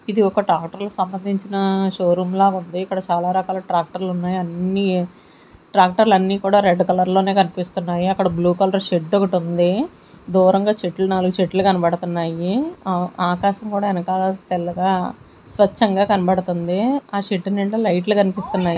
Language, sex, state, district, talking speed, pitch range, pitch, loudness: Telugu, female, Andhra Pradesh, Sri Satya Sai, 135 wpm, 180-195 Hz, 190 Hz, -19 LUFS